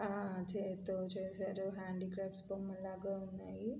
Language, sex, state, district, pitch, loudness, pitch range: Telugu, female, Andhra Pradesh, Anantapur, 190 Hz, -43 LUFS, 190-195 Hz